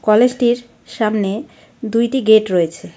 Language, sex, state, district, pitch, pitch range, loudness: Bengali, female, West Bengal, Darjeeling, 220 Hz, 210-240 Hz, -16 LUFS